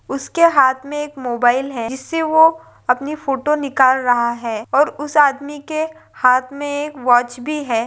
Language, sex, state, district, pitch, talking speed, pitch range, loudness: Hindi, female, Maharashtra, Pune, 275 Hz, 175 wpm, 250-295 Hz, -17 LUFS